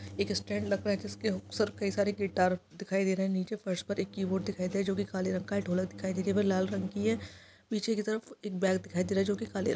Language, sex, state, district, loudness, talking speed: Hindi, female, Chhattisgarh, Kabirdham, -32 LUFS, 325 wpm